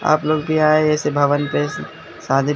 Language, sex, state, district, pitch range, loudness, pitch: Hindi, male, Bihar, Katihar, 145-155 Hz, -18 LUFS, 150 Hz